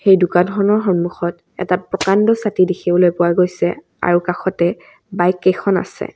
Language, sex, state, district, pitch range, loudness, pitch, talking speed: Assamese, female, Assam, Kamrup Metropolitan, 175-190 Hz, -16 LUFS, 180 Hz, 135 wpm